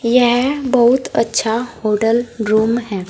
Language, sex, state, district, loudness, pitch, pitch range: Hindi, female, Uttar Pradesh, Saharanpur, -16 LUFS, 235 Hz, 220-245 Hz